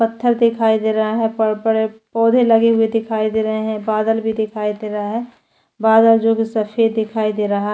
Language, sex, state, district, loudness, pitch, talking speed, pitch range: Hindi, female, Chhattisgarh, Sukma, -17 LUFS, 220 Hz, 225 wpm, 215-225 Hz